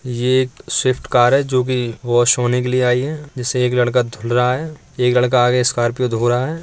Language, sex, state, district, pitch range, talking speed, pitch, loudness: Hindi, male, Uttar Pradesh, Etah, 120-130 Hz, 225 wpm, 125 Hz, -17 LUFS